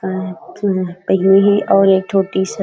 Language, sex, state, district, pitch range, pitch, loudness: Chhattisgarhi, female, Chhattisgarh, Raigarh, 185-195 Hz, 190 Hz, -15 LUFS